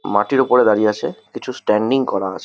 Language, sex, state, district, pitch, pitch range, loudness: Bengali, male, West Bengal, Kolkata, 110 Hz, 105-135 Hz, -17 LUFS